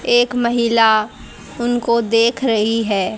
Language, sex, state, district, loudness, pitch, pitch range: Hindi, female, Haryana, Charkhi Dadri, -16 LUFS, 230 Hz, 225-240 Hz